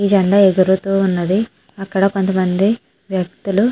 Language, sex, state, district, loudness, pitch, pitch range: Telugu, female, Andhra Pradesh, Chittoor, -16 LUFS, 195 Hz, 190-200 Hz